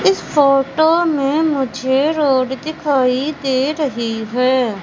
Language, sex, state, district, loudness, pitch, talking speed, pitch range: Hindi, female, Madhya Pradesh, Katni, -16 LUFS, 270 Hz, 110 wpm, 255-300 Hz